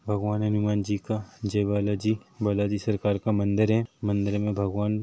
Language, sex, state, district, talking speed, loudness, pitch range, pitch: Hindi, male, Chhattisgarh, Rajnandgaon, 155 wpm, -27 LUFS, 100-105 Hz, 105 Hz